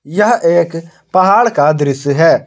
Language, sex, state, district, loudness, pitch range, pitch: Hindi, male, Jharkhand, Garhwa, -12 LUFS, 150-185 Hz, 165 Hz